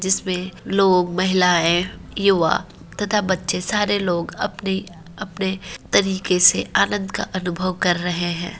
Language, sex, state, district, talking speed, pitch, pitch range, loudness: Hindi, female, Uttar Pradesh, Varanasi, 125 wpm, 185 Hz, 175-195 Hz, -20 LUFS